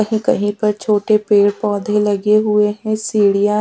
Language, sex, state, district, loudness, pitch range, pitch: Hindi, female, Haryana, Charkhi Dadri, -15 LUFS, 205-215 Hz, 210 Hz